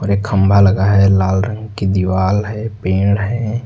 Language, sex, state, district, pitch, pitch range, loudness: Hindi, male, Uttar Pradesh, Lucknow, 100 Hz, 95-105 Hz, -15 LUFS